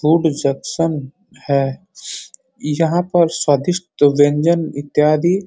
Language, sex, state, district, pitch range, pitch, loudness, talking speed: Hindi, male, Uttar Pradesh, Deoria, 145-175 Hz, 160 Hz, -17 LUFS, 100 wpm